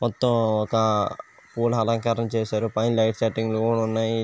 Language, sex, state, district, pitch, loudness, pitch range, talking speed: Telugu, male, Andhra Pradesh, Visakhapatnam, 115 Hz, -23 LUFS, 110-115 Hz, 140 wpm